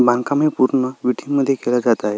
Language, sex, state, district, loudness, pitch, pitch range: Marathi, male, Maharashtra, Solapur, -18 LUFS, 125 Hz, 120-135 Hz